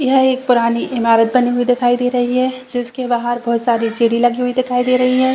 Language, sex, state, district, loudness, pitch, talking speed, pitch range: Hindi, female, Chhattisgarh, Bastar, -16 LUFS, 245 Hz, 225 wpm, 240-255 Hz